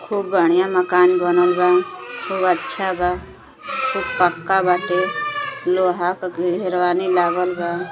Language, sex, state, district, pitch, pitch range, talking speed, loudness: Bhojpuri, female, Uttar Pradesh, Deoria, 180 Hz, 180-190 Hz, 130 wpm, -19 LUFS